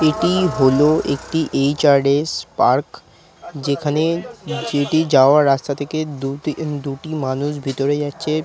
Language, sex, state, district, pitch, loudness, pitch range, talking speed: Bengali, male, West Bengal, Kolkata, 145 Hz, -18 LUFS, 140-155 Hz, 115 wpm